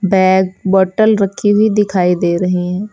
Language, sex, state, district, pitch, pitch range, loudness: Hindi, female, Uttar Pradesh, Lucknow, 190 Hz, 180-205 Hz, -13 LUFS